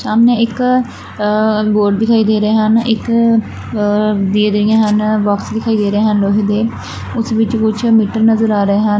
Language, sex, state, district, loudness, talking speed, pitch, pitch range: Punjabi, female, Punjab, Fazilka, -13 LUFS, 185 wpm, 215 Hz, 210-225 Hz